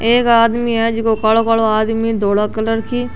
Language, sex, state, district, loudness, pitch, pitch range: Marwari, female, Rajasthan, Nagaur, -15 LUFS, 225 Hz, 220-230 Hz